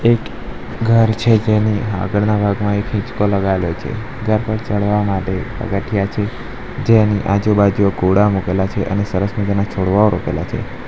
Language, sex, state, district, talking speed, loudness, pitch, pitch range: Gujarati, male, Gujarat, Valsad, 150 wpm, -17 LUFS, 105 Hz, 100-110 Hz